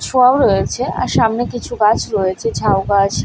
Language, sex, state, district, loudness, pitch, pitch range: Bengali, female, West Bengal, Paschim Medinipur, -15 LUFS, 210 Hz, 195-235 Hz